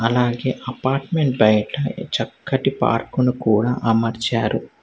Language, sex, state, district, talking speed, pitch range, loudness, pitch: Telugu, male, Telangana, Hyderabad, 85 wpm, 115-130 Hz, -20 LUFS, 120 Hz